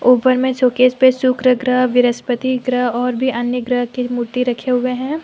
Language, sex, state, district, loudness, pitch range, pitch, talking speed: Hindi, female, Jharkhand, Deoghar, -16 LUFS, 245-255 Hz, 250 Hz, 195 wpm